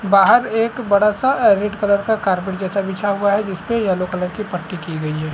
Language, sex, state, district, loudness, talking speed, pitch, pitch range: Hindi, male, Chhattisgarh, Korba, -18 LUFS, 225 wpm, 200 Hz, 185-210 Hz